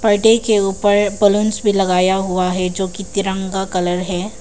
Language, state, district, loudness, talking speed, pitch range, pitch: Hindi, Arunachal Pradesh, Papum Pare, -16 LUFS, 175 wpm, 185-205 Hz, 195 Hz